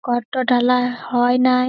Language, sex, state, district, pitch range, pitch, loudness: Bengali, female, West Bengal, Malda, 245-255 Hz, 250 Hz, -18 LUFS